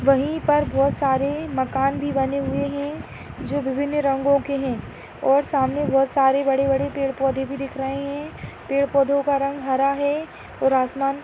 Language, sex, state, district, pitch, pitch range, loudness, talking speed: Hindi, female, Maharashtra, Aurangabad, 275 Hz, 270-285 Hz, -22 LUFS, 185 wpm